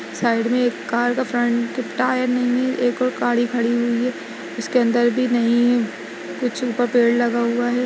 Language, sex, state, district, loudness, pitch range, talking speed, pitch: Hindi, female, Uttarakhand, Uttarkashi, -20 LUFS, 240-250 Hz, 200 wpm, 240 Hz